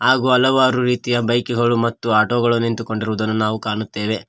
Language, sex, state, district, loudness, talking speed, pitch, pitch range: Kannada, male, Karnataka, Koppal, -18 LUFS, 140 wpm, 115 Hz, 110-125 Hz